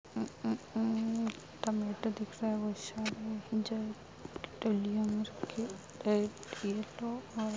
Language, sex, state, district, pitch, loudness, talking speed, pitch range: Hindi, female, Chhattisgarh, Jashpur, 215 Hz, -37 LUFS, 120 wpm, 210-225 Hz